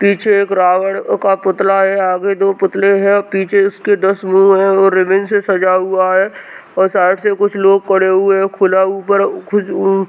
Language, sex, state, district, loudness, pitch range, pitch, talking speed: Hindi, male, Uttar Pradesh, Hamirpur, -13 LUFS, 190-200 Hz, 195 Hz, 195 wpm